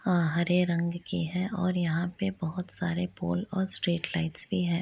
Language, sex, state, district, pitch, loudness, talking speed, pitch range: Hindi, female, Jharkhand, Jamtara, 175 Hz, -28 LUFS, 185 wpm, 170-185 Hz